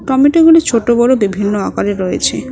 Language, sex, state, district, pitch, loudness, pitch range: Bengali, female, West Bengal, Cooch Behar, 235 Hz, -12 LUFS, 205-280 Hz